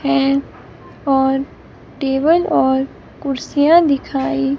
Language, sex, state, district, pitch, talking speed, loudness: Hindi, female, Himachal Pradesh, Shimla, 265 Hz, 80 wpm, -16 LUFS